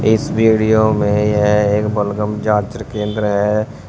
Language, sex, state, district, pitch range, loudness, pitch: Hindi, male, Uttar Pradesh, Shamli, 105-110 Hz, -16 LUFS, 105 Hz